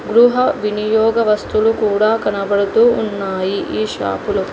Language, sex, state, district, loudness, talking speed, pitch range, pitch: Telugu, female, Telangana, Hyderabad, -16 LUFS, 105 wpm, 200-225 Hz, 215 Hz